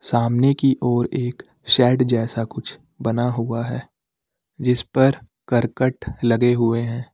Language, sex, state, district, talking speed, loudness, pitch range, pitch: Hindi, male, Uttar Pradesh, Lucknow, 135 wpm, -20 LUFS, 115-125 Hz, 120 Hz